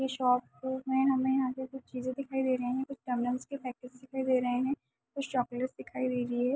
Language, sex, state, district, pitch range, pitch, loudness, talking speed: Hindi, female, Jharkhand, Sahebganj, 250-265 Hz, 260 Hz, -32 LUFS, 240 wpm